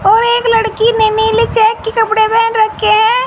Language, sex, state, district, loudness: Hindi, female, Haryana, Jhajjar, -11 LUFS